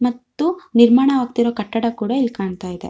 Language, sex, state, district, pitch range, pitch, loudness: Kannada, female, Karnataka, Shimoga, 225-255 Hz, 235 Hz, -18 LUFS